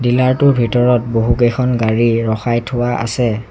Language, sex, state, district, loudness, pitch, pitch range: Assamese, male, Assam, Sonitpur, -15 LUFS, 120 Hz, 115-125 Hz